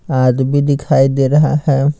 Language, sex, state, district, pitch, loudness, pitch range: Hindi, male, Bihar, Patna, 140 Hz, -13 LUFS, 135-145 Hz